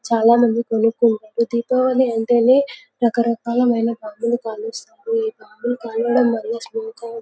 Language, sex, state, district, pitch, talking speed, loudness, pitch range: Telugu, female, Telangana, Karimnagar, 235 Hz, 100 wpm, -19 LUFS, 230-245 Hz